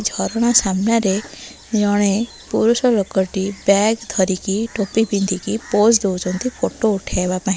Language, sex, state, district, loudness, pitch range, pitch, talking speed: Odia, female, Odisha, Malkangiri, -18 LUFS, 195-225 Hz, 205 Hz, 110 wpm